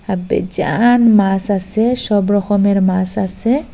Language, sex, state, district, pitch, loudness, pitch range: Bengali, female, Assam, Hailakandi, 205 Hz, -15 LUFS, 195-225 Hz